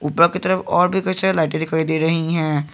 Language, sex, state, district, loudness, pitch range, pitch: Hindi, male, Jharkhand, Garhwa, -18 LUFS, 160-185 Hz, 165 Hz